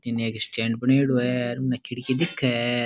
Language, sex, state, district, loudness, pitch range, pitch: Rajasthani, male, Rajasthan, Nagaur, -24 LUFS, 120-130 Hz, 125 Hz